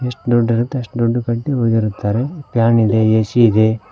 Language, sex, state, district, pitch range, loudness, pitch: Kannada, male, Karnataka, Koppal, 110-120 Hz, -16 LUFS, 115 Hz